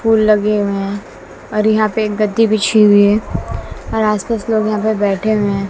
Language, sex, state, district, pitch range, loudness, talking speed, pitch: Hindi, female, Bihar, West Champaran, 205-220 Hz, -15 LUFS, 220 wpm, 215 Hz